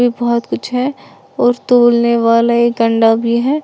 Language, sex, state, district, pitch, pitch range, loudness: Hindi, female, Uttar Pradesh, Lalitpur, 235 Hz, 235-245 Hz, -13 LUFS